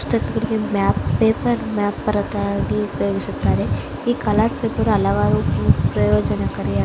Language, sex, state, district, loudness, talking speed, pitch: Kannada, female, Karnataka, Mysore, -20 LUFS, 115 wpm, 200 Hz